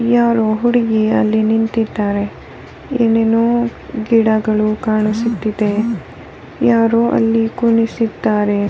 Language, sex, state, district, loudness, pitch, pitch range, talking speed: Kannada, female, Karnataka, Dharwad, -15 LUFS, 225 Hz, 215-230 Hz, 70 wpm